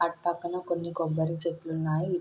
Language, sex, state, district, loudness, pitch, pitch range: Telugu, female, Andhra Pradesh, Srikakulam, -31 LUFS, 170 Hz, 160-175 Hz